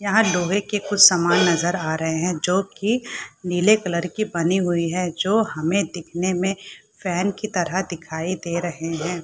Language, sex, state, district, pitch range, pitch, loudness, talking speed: Hindi, female, Bihar, Saharsa, 170-200 Hz, 180 Hz, -21 LUFS, 180 wpm